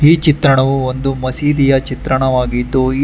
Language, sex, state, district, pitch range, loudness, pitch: Kannada, male, Karnataka, Bangalore, 130-140 Hz, -14 LUFS, 135 Hz